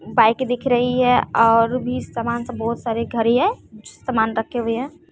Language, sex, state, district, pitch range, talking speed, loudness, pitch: Hindi, female, Bihar, West Champaran, 230-250 Hz, 210 wpm, -19 LUFS, 235 Hz